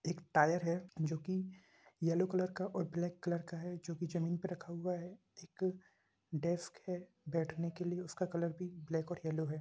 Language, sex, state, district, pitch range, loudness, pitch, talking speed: Hindi, male, Bihar, Gopalganj, 170-180 Hz, -39 LUFS, 175 Hz, 205 wpm